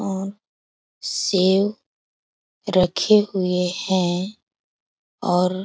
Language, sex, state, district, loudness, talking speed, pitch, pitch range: Hindi, female, Bihar, East Champaran, -21 LUFS, 75 wpm, 190 Hz, 180-200 Hz